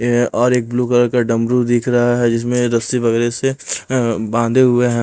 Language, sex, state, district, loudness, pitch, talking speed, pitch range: Hindi, male, Punjab, Pathankot, -16 LUFS, 120 Hz, 240 wpm, 115-125 Hz